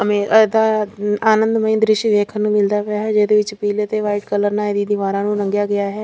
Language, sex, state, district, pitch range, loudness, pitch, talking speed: Punjabi, female, Chandigarh, Chandigarh, 205-215 Hz, -17 LUFS, 210 Hz, 230 wpm